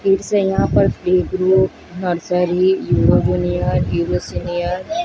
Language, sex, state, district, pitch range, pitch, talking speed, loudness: Hindi, female, Odisha, Sambalpur, 170-190 Hz, 180 Hz, 60 wpm, -17 LUFS